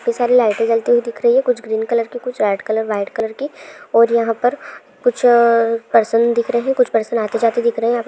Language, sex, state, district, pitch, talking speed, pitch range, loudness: Hindi, female, Andhra Pradesh, Srikakulam, 235 Hz, 355 wpm, 225-245 Hz, -16 LUFS